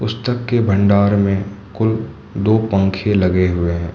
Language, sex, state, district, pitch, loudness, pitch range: Hindi, male, Manipur, Imphal West, 100 Hz, -17 LUFS, 95-110 Hz